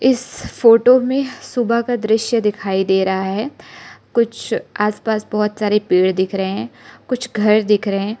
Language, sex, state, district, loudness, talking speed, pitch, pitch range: Hindi, female, Arunachal Pradesh, Lower Dibang Valley, -17 LUFS, 185 wpm, 215 Hz, 200-240 Hz